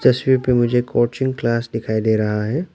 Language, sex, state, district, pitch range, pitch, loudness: Hindi, male, Arunachal Pradesh, Lower Dibang Valley, 110-130 Hz, 120 Hz, -19 LUFS